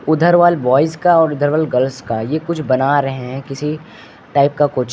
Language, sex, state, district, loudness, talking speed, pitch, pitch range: Hindi, male, Uttar Pradesh, Lucknow, -16 LUFS, 220 wpm, 145 Hz, 130-160 Hz